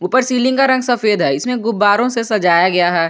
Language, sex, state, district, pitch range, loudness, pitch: Hindi, male, Jharkhand, Garhwa, 180-250 Hz, -14 LUFS, 225 Hz